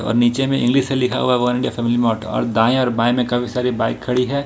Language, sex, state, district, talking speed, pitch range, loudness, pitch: Hindi, male, Jharkhand, Ranchi, 270 wpm, 120-125 Hz, -18 LUFS, 125 Hz